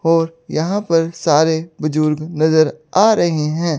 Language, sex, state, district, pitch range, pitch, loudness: Hindi, female, Chandigarh, Chandigarh, 155-165 Hz, 160 Hz, -16 LUFS